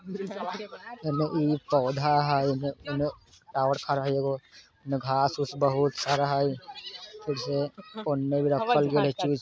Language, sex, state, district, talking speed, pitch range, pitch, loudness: Maithili, male, Bihar, Muzaffarpur, 85 wpm, 140-155 Hz, 145 Hz, -28 LUFS